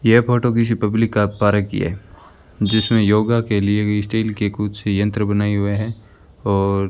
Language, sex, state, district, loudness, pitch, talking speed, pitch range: Hindi, male, Rajasthan, Bikaner, -18 LUFS, 105 Hz, 190 wpm, 100-110 Hz